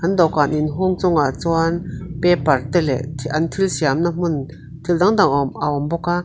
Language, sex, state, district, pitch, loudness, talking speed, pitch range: Mizo, female, Mizoram, Aizawl, 165 Hz, -19 LUFS, 190 wpm, 145-175 Hz